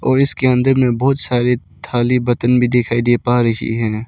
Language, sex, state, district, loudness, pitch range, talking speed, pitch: Hindi, male, Arunachal Pradesh, Lower Dibang Valley, -15 LUFS, 120-125 Hz, 205 wpm, 125 Hz